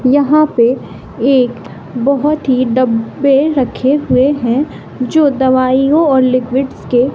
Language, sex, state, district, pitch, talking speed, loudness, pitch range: Hindi, female, Bihar, West Champaran, 265 Hz, 115 wpm, -13 LUFS, 255-280 Hz